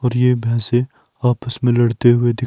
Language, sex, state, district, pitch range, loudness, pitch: Hindi, male, Himachal Pradesh, Shimla, 120-125 Hz, -17 LUFS, 120 Hz